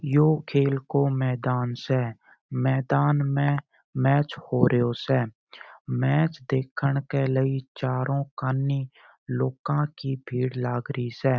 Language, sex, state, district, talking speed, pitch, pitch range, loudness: Marwari, male, Rajasthan, Churu, 115 wpm, 135 Hz, 130-140 Hz, -26 LUFS